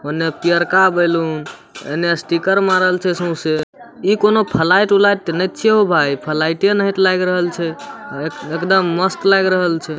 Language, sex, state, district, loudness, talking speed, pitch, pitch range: Maithili, male, Bihar, Samastipur, -16 LUFS, 170 wpm, 180 Hz, 165-190 Hz